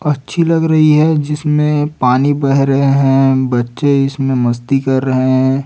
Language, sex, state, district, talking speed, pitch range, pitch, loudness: Hindi, male, Chhattisgarh, Raipur, 160 wpm, 130-150 Hz, 135 Hz, -13 LUFS